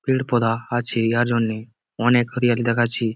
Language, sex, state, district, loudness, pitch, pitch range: Bengali, male, West Bengal, Jalpaiguri, -21 LUFS, 120 Hz, 115-120 Hz